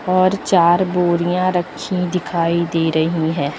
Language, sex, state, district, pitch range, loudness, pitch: Hindi, female, Uttar Pradesh, Lucknow, 165-180 Hz, -17 LUFS, 175 Hz